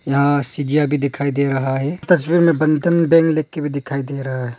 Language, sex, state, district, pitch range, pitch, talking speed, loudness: Hindi, male, Arunachal Pradesh, Longding, 140-160 Hz, 145 Hz, 235 wpm, -17 LUFS